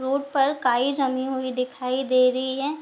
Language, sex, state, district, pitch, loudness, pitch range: Hindi, female, Bihar, Sitamarhi, 260 Hz, -23 LUFS, 255-275 Hz